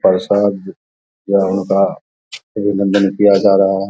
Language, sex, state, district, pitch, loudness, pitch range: Hindi, male, Bihar, Vaishali, 100 Hz, -14 LUFS, 95-100 Hz